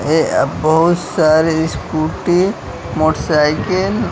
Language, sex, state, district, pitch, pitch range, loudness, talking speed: Hindi, male, Bihar, West Champaran, 160 Hz, 155-175 Hz, -15 LUFS, 85 wpm